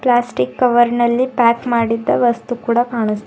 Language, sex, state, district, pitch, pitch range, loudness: Kannada, female, Karnataka, Bidar, 240 Hz, 230-245 Hz, -16 LUFS